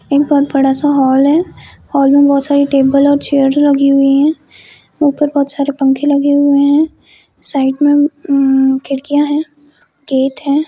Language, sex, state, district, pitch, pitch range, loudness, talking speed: Hindi, female, Jharkhand, Sahebganj, 280 Hz, 275-290 Hz, -12 LUFS, 165 wpm